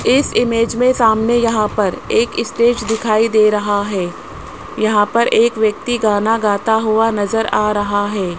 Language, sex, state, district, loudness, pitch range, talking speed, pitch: Hindi, male, Rajasthan, Jaipur, -15 LUFS, 210-230 Hz, 165 wpm, 220 Hz